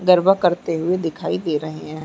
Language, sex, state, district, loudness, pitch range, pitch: Hindi, female, Chhattisgarh, Bastar, -20 LUFS, 155-180 Hz, 170 Hz